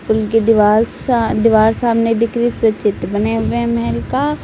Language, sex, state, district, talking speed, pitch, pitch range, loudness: Hindi, female, Uttar Pradesh, Lucknow, 205 wpm, 225 Hz, 210-230 Hz, -15 LUFS